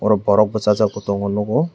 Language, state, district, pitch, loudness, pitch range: Kokborok, Tripura, West Tripura, 105 Hz, -18 LUFS, 100-110 Hz